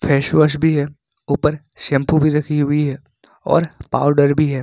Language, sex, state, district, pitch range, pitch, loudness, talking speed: Hindi, male, Jharkhand, Ranchi, 140-150 Hz, 145 Hz, -17 LUFS, 180 wpm